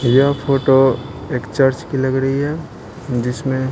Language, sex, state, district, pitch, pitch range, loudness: Hindi, male, Bihar, Patna, 135 Hz, 125-140 Hz, -17 LUFS